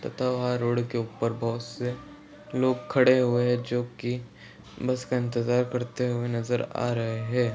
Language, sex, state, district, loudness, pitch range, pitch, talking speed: Hindi, male, Chhattisgarh, Sarguja, -27 LUFS, 120-125 Hz, 120 Hz, 145 wpm